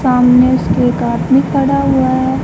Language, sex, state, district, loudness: Hindi, female, Uttar Pradesh, Varanasi, -12 LUFS